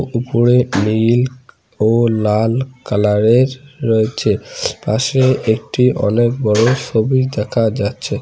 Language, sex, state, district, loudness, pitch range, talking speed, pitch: Bengali, male, West Bengal, Cooch Behar, -15 LUFS, 110-130 Hz, 100 wpm, 115 Hz